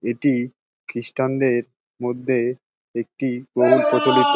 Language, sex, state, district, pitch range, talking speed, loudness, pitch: Bengali, male, West Bengal, Dakshin Dinajpur, 120-130 Hz, 110 wpm, -21 LUFS, 125 Hz